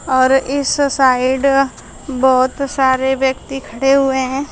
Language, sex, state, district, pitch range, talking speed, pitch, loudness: Hindi, female, Uttar Pradesh, Shamli, 260-275 Hz, 120 wpm, 265 Hz, -15 LUFS